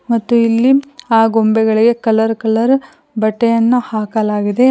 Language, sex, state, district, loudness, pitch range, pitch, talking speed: Kannada, female, Karnataka, Koppal, -14 LUFS, 220-245 Hz, 230 Hz, 100 wpm